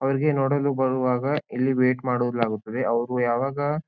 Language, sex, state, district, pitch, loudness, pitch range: Kannada, male, Karnataka, Bijapur, 130 Hz, -24 LUFS, 125-140 Hz